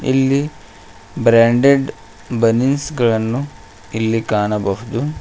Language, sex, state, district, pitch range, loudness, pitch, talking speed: Kannada, male, Karnataka, Koppal, 105-135 Hz, -16 LUFS, 115 Hz, 60 wpm